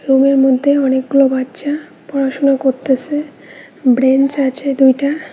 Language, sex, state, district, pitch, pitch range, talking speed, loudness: Bengali, female, West Bengal, Cooch Behar, 275 Hz, 265-280 Hz, 100 wpm, -14 LUFS